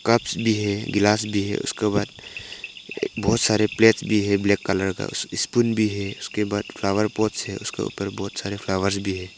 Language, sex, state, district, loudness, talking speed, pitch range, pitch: Hindi, male, Arunachal Pradesh, Papum Pare, -23 LUFS, 205 wpm, 100-110 Hz, 105 Hz